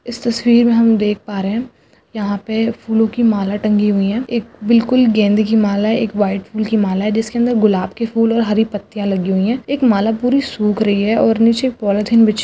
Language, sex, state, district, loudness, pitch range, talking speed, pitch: Chhattisgarhi, female, Chhattisgarh, Rajnandgaon, -15 LUFS, 205-230 Hz, 235 wpm, 220 Hz